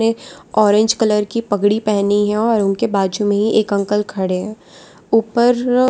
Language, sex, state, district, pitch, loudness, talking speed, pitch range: Hindi, female, Gujarat, Valsad, 215 Hz, -16 LUFS, 185 wpm, 205-225 Hz